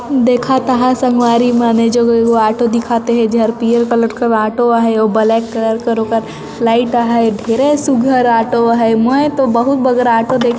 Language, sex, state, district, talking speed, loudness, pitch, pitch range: Chhattisgarhi, female, Chhattisgarh, Sarguja, 190 wpm, -12 LUFS, 235 Hz, 230-245 Hz